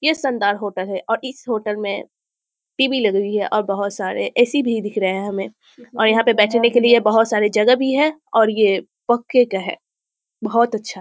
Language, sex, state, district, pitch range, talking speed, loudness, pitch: Hindi, female, Bihar, Muzaffarpur, 205-245 Hz, 220 wpm, -18 LUFS, 220 Hz